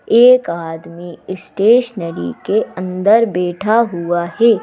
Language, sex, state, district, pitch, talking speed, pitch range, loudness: Hindi, female, Madhya Pradesh, Bhopal, 185 Hz, 105 wpm, 170-230 Hz, -15 LUFS